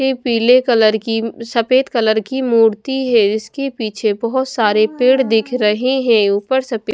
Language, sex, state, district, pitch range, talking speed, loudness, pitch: Hindi, female, Chhattisgarh, Raipur, 220-260 Hz, 165 wpm, -15 LUFS, 230 Hz